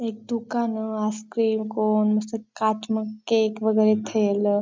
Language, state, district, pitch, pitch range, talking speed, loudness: Bhili, Maharashtra, Dhule, 215 Hz, 215-225 Hz, 115 wpm, -24 LUFS